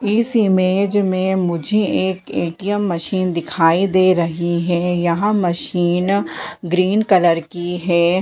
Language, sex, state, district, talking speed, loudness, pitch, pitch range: Hindi, female, Bihar, Bhagalpur, 125 wpm, -17 LUFS, 185 Hz, 170-195 Hz